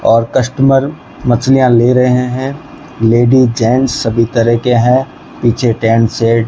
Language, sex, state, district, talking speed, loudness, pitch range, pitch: Hindi, male, Rajasthan, Bikaner, 150 wpm, -11 LUFS, 115-130 Hz, 125 Hz